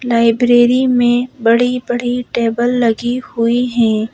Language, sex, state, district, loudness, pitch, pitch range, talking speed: Hindi, female, Madhya Pradesh, Bhopal, -14 LUFS, 240 Hz, 230-245 Hz, 100 wpm